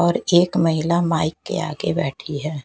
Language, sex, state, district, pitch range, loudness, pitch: Hindi, female, Haryana, Jhajjar, 155-175 Hz, -20 LUFS, 165 Hz